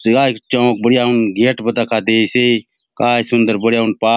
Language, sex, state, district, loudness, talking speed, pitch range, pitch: Halbi, male, Chhattisgarh, Bastar, -14 LUFS, 200 wpm, 115-120 Hz, 115 Hz